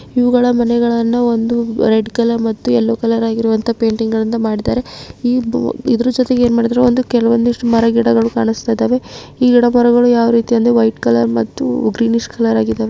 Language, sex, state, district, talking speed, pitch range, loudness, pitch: Kannada, female, Karnataka, Gulbarga, 135 wpm, 225-245 Hz, -14 LUFS, 230 Hz